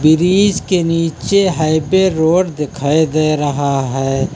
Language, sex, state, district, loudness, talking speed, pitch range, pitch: Hindi, male, Uttar Pradesh, Lucknow, -14 LUFS, 125 wpm, 145-180 Hz, 160 Hz